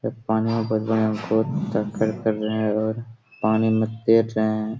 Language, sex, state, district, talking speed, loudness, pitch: Hindi, male, Jharkhand, Sahebganj, 135 wpm, -23 LUFS, 110 Hz